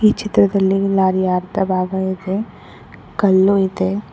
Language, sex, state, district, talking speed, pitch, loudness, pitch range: Kannada, female, Karnataka, Koppal, 115 wpm, 195 Hz, -17 LUFS, 185-200 Hz